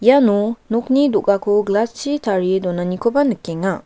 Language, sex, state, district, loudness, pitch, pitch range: Garo, female, Meghalaya, West Garo Hills, -18 LUFS, 210 Hz, 190-245 Hz